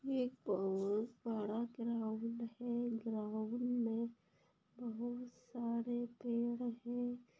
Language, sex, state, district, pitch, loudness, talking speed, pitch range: Hindi, female, Bihar, Sitamarhi, 235 Hz, -41 LUFS, 90 wpm, 225-240 Hz